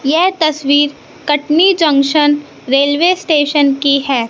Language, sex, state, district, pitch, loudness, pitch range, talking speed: Hindi, female, Madhya Pradesh, Katni, 290 Hz, -12 LUFS, 280-315 Hz, 110 wpm